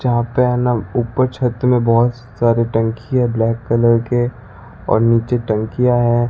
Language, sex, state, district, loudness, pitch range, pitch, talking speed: Hindi, male, Rajasthan, Bikaner, -16 LUFS, 115-125 Hz, 120 Hz, 170 wpm